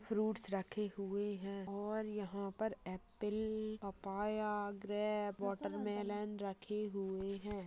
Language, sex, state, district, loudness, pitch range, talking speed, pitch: Hindi, female, Uttar Pradesh, Ghazipur, -42 LUFS, 195-210 Hz, 115 wpm, 205 Hz